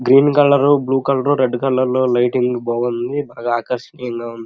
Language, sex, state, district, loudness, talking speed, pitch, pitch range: Telugu, male, Andhra Pradesh, Krishna, -17 LUFS, 160 wpm, 125 Hz, 120-135 Hz